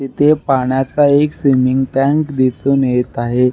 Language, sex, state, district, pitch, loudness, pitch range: Marathi, male, Maharashtra, Nagpur, 135 Hz, -14 LUFS, 130-140 Hz